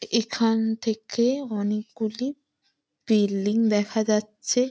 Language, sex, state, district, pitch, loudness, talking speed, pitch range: Bengali, female, West Bengal, Malda, 220 Hz, -25 LUFS, 90 wpm, 210-235 Hz